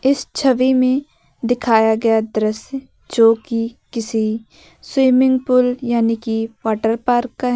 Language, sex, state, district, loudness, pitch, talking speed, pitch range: Hindi, female, Uttar Pradesh, Lucknow, -17 LUFS, 235 Hz, 135 wpm, 225-255 Hz